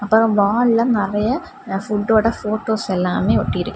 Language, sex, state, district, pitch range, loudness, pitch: Tamil, female, Tamil Nadu, Kanyakumari, 205-230 Hz, -18 LUFS, 220 Hz